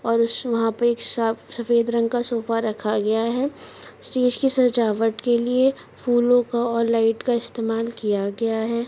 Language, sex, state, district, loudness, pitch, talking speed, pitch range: Hindi, female, Rajasthan, Churu, -21 LUFS, 235 Hz, 175 wpm, 225-240 Hz